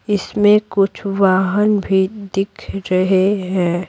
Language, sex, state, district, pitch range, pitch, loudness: Hindi, female, Bihar, Patna, 190-205 Hz, 195 Hz, -16 LUFS